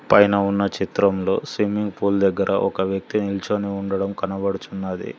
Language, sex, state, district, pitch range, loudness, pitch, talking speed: Telugu, male, Telangana, Mahabubabad, 95-100 Hz, -22 LUFS, 100 Hz, 125 wpm